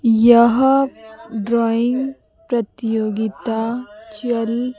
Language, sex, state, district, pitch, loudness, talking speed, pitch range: Hindi, female, Chhattisgarh, Raipur, 235 Hz, -18 LUFS, 50 wpm, 225-260 Hz